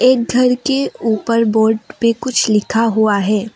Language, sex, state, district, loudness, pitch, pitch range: Hindi, female, Assam, Kamrup Metropolitan, -15 LUFS, 230 Hz, 220-250 Hz